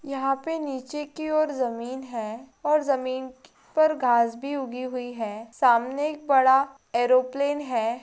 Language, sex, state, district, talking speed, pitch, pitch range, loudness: Hindi, female, Chhattisgarh, Rajnandgaon, 150 wpm, 265 Hz, 245-285 Hz, -25 LUFS